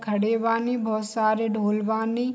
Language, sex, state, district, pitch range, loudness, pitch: Hindi, female, Bihar, Saharsa, 215-230 Hz, -24 LUFS, 220 Hz